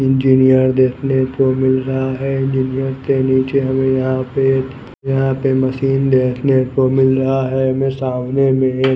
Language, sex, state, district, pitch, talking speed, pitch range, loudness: Hindi, male, Odisha, Nuapada, 130 Hz, 160 wpm, 130-135 Hz, -15 LUFS